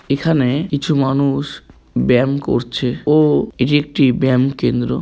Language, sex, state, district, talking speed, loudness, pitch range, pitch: Bengali, male, West Bengal, Kolkata, 120 wpm, -16 LUFS, 130-145 Hz, 140 Hz